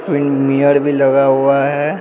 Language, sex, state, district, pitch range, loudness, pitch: Hindi, male, Bihar, Araria, 140-145 Hz, -13 LUFS, 140 Hz